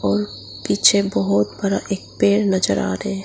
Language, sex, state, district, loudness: Hindi, female, Arunachal Pradesh, Lower Dibang Valley, -19 LUFS